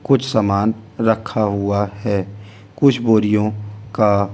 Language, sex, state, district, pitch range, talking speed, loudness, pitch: Hindi, male, Delhi, New Delhi, 100-110 Hz, 150 wpm, -18 LUFS, 105 Hz